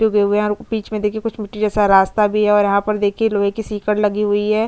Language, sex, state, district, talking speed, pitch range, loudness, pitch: Hindi, female, Chhattisgarh, Bastar, 280 wpm, 205-215 Hz, -17 LUFS, 210 Hz